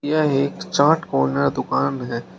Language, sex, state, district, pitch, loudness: Hindi, male, Uttar Pradesh, Shamli, 130 Hz, -20 LUFS